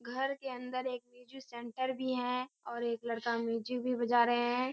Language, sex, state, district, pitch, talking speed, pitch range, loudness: Hindi, female, Bihar, Kishanganj, 250 Hz, 200 wpm, 235-255 Hz, -35 LUFS